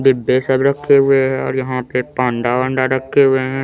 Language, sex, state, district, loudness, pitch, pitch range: Hindi, male, Chandigarh, Chandigarh, -15 LUFS, 130 Hz, 130-135 Hz